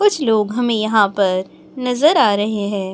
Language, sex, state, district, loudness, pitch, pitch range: Hindi, female, Chhattisgarh, Raipur, -17 LUFS, 215 Hz, 205-250 Hz